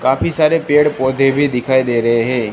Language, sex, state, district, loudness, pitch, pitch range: Hindi, female, Gujarat, Gandhinagar, -14 LUFS, 130 Hz, 120-145 Hz